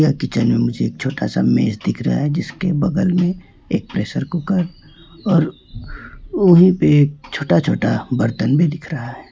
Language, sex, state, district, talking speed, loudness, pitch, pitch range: Hindi, male, West Bengal, Alipurduar, 165 wpm, -18 LUFS, 160 Hz, 140-180 Hz